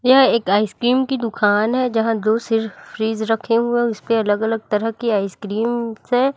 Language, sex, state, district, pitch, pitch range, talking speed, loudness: Hindi, female, Chhattisgarh, Raipur, 225 Hz, 215-240 Hz, 170 wpm, -19 LUFS